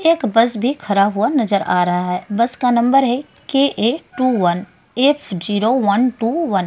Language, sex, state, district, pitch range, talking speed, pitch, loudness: Hindi, female, Delhi, New Delhi, 200-260 Hz, 190 wpm, 235 Hz, -17 LUFS